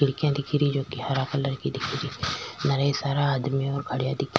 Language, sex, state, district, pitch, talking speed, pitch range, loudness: Rajasthani, female, Rajasthan, Nagaur, 140 Hz, 220 wpm, 135-140 Hz, -26 LUFS